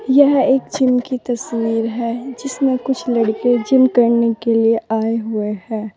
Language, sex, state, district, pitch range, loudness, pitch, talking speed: Hindi, female, Uttar Pradesh, Saharanpur, 225-260 Hz, -17 LUFS, 235 Hz, 140 wpm